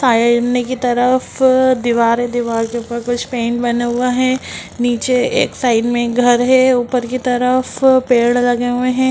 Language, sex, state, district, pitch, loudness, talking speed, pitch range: Hindi, female, Bihar, Muzaffarpur, 245 Hz, -15 LUFS, 180 wpm, 240-255 Hz